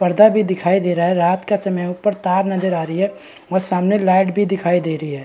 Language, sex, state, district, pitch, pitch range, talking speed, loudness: Hindi, female, Bihar, East Champaran, 185 Hz, 175-195 Hz, 275 wpm, -17 LUFS